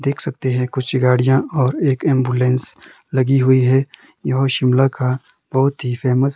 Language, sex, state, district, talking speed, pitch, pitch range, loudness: Hindi, male, Himachal Pradesh, Shimla, 170 wpm, 130 Hz, 125-135 Hz, -17 LUFS